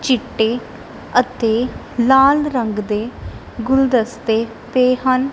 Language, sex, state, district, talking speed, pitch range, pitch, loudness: Punjabi, female, Punjab, Kapurthala, 90 wpm, 225-260 Hz, 245 Hz, -17 LUFS